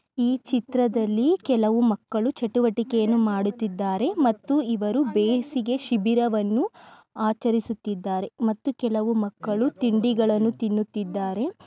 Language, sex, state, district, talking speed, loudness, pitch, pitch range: Kannada, female, Karnataka, Mysore, 135 wpm, -24 LUFS, 230 Hz, 215-250 Hz